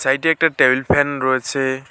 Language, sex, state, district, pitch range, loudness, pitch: Bengali, male, West Bengal, Alipurduar, 130-145 Hz, -17 LUFS, 135 Hz